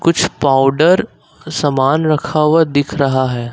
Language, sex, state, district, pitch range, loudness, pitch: Hindi, male, Uttar Pradesh, Lucknow, 135-160 Hz, -14 LUFS, 145 Hz